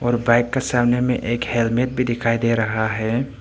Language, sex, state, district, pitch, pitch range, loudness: Hindi, male, Arunachal Pradesh, Papum Pare, 120 Hz, 115-125 Hz, -20 LUFS